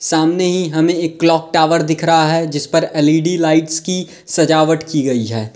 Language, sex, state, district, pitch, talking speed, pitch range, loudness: Hindi, male, Uttar Pradesh, Lalitpur, 160 Hz, 195 wpm, 155-165 Hz, -15 LUFS